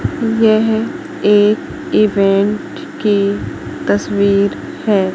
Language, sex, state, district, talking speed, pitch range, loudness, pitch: Hindi, female, Madhya Pradesh, Katni, 70 wpm, 200-225 Hz, -15 LUFS, 210 Hz